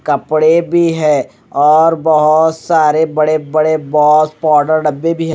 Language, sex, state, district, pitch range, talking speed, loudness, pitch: Hindi, male, Odisha, Malkangiri, 150-160 Hz, 145 wpm, -12 LUFS, 155 Hz